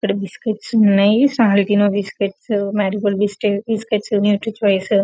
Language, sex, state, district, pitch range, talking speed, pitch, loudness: Telugu, female, Telangana, Karimnagar, 200-215 Hz, 120 wpm, 205 Hz, -17 LUFS